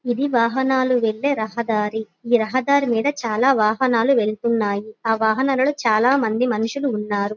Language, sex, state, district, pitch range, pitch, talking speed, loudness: Telugu, female, Andhra Pradesh, Guntur, 220-265 Hz, 235 Hz, 130 wpm, -20 LUFS